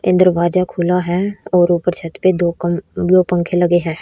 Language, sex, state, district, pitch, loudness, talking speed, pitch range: Hindi, female, Haryana, Rohtak, 175 Hz, -16 LUFS, 180 wpm, 175-185 Hz